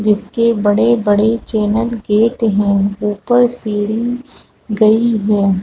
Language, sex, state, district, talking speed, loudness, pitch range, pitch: Hindi, female, Chhattisgarh, Balrampur, 115 wpm, -14 LUFS, 205-230 Hz, 215 Hz